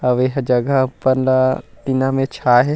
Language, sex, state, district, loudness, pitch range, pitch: Chhattisgarhi, male, Chhattisgarh, Rajnandgaon, -17 LUFS, 125-135 Hz, 130 Hz